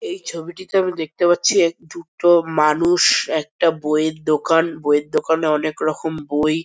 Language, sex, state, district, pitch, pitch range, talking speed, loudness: Bengali, male, West Bengal, North 24 Parganas, 160 Hz, 155-170 Hz, 155 wpm, -18 LUFS